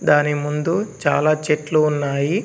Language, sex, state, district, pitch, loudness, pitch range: Telugu, male, Telangana, Komaram Bheem, 150 Hz, -19 LUFS, 145-155 Hz